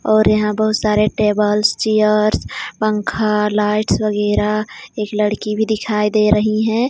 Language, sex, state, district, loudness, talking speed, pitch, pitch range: Hindi, female, Jharkhand, Ranchi, -16 LUFS, 140 wpm, 215 Hz, 210-215 Hz